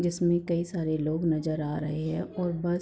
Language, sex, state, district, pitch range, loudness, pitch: Hindi, female, Uttar Pradesh, Hamirpur, 155-175 Hz, -29 LUFS, 165 Hz